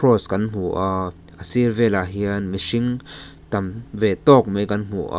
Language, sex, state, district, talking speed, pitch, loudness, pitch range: Mizo, male, Mizoram, Aizawl, 185 wpm, 105 Hz, -20 LUFS, 95-120 Hz